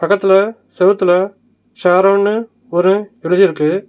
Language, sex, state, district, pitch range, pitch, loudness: Tamil, male, Tamil Nadu, Nilgiris, 180-205 Hz, 195 Hz, -14 LUFS